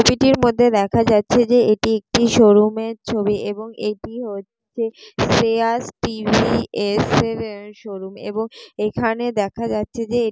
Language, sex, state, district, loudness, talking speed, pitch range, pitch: Bengali, female, West Bengal, Jalpaiguri, -18 LUFS, 120 wpm, 210-230 Hz, 225 Hz